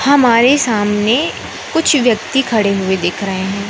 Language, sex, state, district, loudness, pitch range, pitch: Hindi, male, Madhya Pradesh, Katni, -14 LUFS, 200-270 Hz, 225 Hz